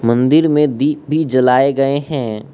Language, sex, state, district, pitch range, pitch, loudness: Hindi, male, Arunachal Pradesh, Lower Dibang Valley, 125-150 Hz, 140 Hz, -14 LUFS